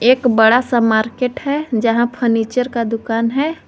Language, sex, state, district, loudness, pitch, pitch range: Hindi, female, Jharkhand, Garhwa, -16 LUFS, 240 Hz, 225-255 Hz